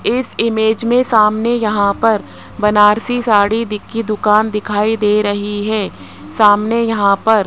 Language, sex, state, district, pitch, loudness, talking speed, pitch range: Hindi, male, Rajasthan, Jaipur, 215 Hz, -14 LUFS, 145 wpm, 205-225 Hz